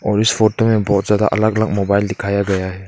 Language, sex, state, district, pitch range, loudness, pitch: Hindi, male, Arunachal Pradesh, Papum Pare, 100-110 Hz, -16 LUFS, 105 Hz